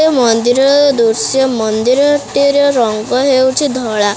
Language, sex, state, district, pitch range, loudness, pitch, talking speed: Odia, male, Odisha, Khordha, 230-280 Hz, -12 LUFS, 260 Hz, 100 wpm